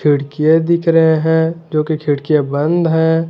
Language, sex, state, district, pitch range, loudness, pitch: Hindi, male, Jharkhand, Garhwa, 150-165 Hz, -14 LUFS, 160 Hz